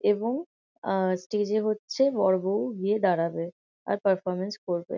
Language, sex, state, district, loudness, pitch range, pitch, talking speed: Bengali, female, West Bengal, Kolkata, -27 LUFS, 185-215 Hz, 195 Hz, 145 wpm